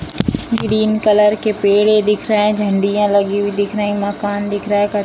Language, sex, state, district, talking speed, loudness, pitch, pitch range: Hindi, female, Bihar, Sitamarhi, 225 wpm, -16 LUFS, 205 Hz, 205-210 Hz